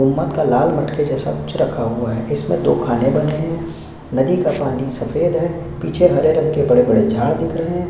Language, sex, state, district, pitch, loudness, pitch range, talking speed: Hindi, male, Chhattisgarh, Sukma, 155 Hz, -18 LUFS, 130-165 Hz, 230 wpm